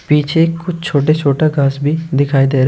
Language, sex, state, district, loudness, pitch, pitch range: Hindi, male, Uttar Pradesh, Shamli, -14 LUFS, 150 Hz, 140-160 Hz